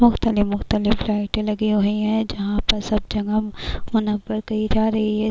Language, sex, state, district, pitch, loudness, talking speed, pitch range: Urdu, female, Bihar, Kishanganj, 215 Hz, -21 LUFS, 170 wpm, 210-220 Hz